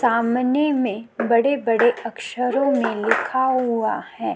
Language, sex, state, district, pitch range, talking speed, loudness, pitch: Hindi, female, Uttarakhand, Tehri Garhwal, 235-260 Hz, 110 wpm, -20 LUFS, 245 Hz